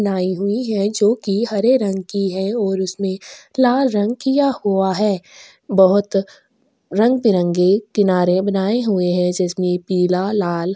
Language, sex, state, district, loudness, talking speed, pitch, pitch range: Hindi, female, Chhattisgarh, Sukma, -18 LUFS, 155 wpm, 200 Hz, 190-225 Hz